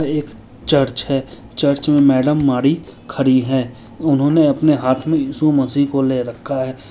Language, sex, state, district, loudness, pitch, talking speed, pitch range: Maithili, male, Bihar, Muzaffarpur, -16 LUFS, 140 Hz, 175 wpm, 130-145 Hz